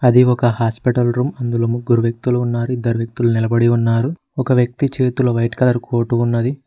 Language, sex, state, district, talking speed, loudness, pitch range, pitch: Telugu, male, Telangana, Mahabubabad, 170 wpm, -17 LUFS, 115-125 Hz, 120 Hz